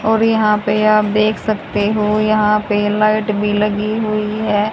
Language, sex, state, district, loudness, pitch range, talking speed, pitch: Hindi, female, Haryana, Jhajjar, -15 LUFS, 210-215 Hz, 175 wpm, 215 Hz